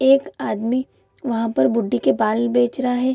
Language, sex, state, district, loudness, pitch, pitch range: Hindi, female, Bihar, Bhagalpur, -20 LUFS, 240 Hz, 225-255 Hz